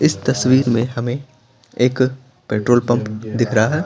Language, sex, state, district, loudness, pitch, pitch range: Hindi, male, Bihar, Patna, -18 LUFS, 120 Hz, 120-130 Hz